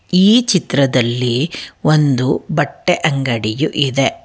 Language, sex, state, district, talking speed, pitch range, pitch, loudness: Kannada, female, Karnataka, Bangalore, 100 wpm, 130-170 Hz, 140 Hz, -15 LUFS